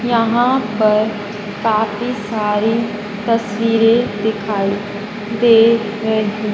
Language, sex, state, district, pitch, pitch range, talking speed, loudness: Hindi, female, Madhya Pradesh, Dhar, 220 Hz, 210-230 Hz, 75 wpm, -16 LUFS